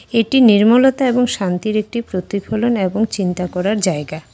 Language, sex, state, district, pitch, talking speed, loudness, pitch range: Bengali, female, West Bengal, Cooch Behar, 215 Hz, 140 wpm, -16 LUFS, 185-235 Hz